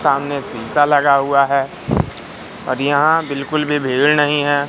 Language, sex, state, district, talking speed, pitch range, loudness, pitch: Hindi, male, Madhya Pradesh, Katni, 155 wpm, 140-145 Hz, -16 LUFS, 145 Hz